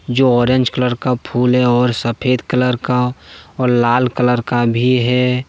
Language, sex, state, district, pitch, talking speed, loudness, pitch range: Hindi, male, Jharkhand, Deoghar, 125 Hz, 175 wpm, -15 LUFS, 120-125 Hz